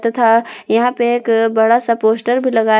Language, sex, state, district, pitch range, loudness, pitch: Hindi, female, Jharkhand, Palamu, 225-240 Hz, -14 LUFS, 230 Hz